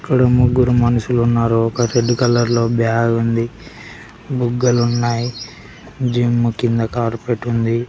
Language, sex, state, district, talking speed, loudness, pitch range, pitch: Telugu, male, Telangana, Nalgonda, 115 wpm, -17 LUFS, 115-120 Hz, 120 Hz